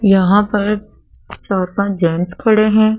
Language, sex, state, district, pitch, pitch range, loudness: Hindi, female, Madhya Pradesh, Dhar, 205 Hz, 190-215 Hz, -15 LUFS